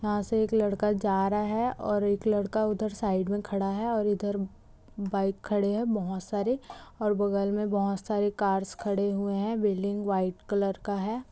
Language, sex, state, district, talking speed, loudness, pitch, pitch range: Hindi, female, Chhattisgarh, Raigarh, 185 wpm, -29 LUFS, 205 Hz, 200-215 Hz